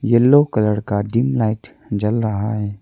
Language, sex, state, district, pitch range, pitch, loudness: Hindi, male, Arunachal Pradesh, Lower Dibang Valley, 105-120 Hz, 110 Hz, -18 LUFS